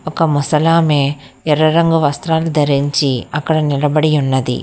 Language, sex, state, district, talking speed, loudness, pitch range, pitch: Telugu, female, Telangana, Hyderabad, 115 wpm, -14 LUFS, 140-160 Hz, 150 Hz